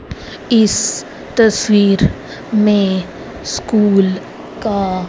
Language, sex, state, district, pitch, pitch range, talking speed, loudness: Hindi, female, Haryana, Rohtak, 205 Hz, 190-215 Hz, 60 wpm, -15 LUFS